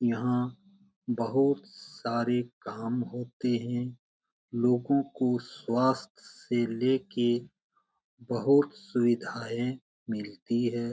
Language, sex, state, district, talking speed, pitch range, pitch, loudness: Hindi, male, Bihar, Jamui, 80 wpm, 120-130 Hz, 120 Hz, -30 LUFS